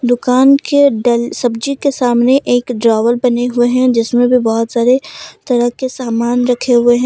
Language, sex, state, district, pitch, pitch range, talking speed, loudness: Hindi, female, Jharkhand, Deoghar, 245 Hz, 240-255 Hz, 180 wpm, -13 LUFS